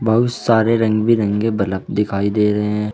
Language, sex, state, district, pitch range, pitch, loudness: Hindi, male, Uttar Pradesh, Saharanpur, 105-115 Hz, 105 Hz, -17 LUFS